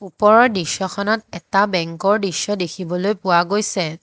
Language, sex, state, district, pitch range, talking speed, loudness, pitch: Assamese, female, Assam, Hailakandi, 180-205 Hz, 135 wpm, -18 LUFS, 195 Hz